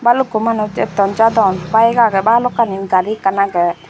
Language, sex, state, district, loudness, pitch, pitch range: Chakma, female, Tripura, Dhalai, -14 LUFS, 215 Hz, 195-230 Hz